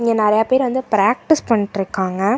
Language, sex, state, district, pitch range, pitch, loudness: Tamil, female, Karnataka, Bangalore, 200-255 Hz, 220 Hz, -17 LUFS